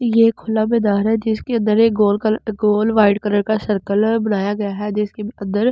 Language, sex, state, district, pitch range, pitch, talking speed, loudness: Hindi, male, Delhi, New Delhi, 205-225 Hz, 215 Hz, 210 wpm, -17 LUFS